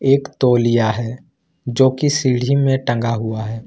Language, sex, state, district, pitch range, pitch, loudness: Hindi, male, Jharkhand, Ranchi, 115-135 Hz, 125 Hz, -17 LUFS